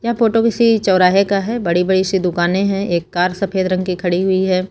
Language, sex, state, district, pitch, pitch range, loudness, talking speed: Hindi, female, Uttar Pradesh, Lucknow, 190 Hz, 180-200 Hz, -16 LUFS, 240 wpm